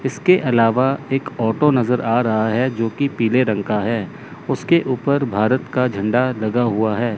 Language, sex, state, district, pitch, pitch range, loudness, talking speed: Hindi, male, Chandigarh, Chandigarh, 120 Hz, 110-130 Hz, -18 LUFS, 175 wpm